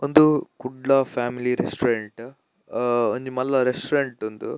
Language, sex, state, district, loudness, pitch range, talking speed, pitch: Tulu, male, Karnataka, Dakshina Kannada, -23 LUFS, 120-135 Hz, 120 wpm, 130 Hz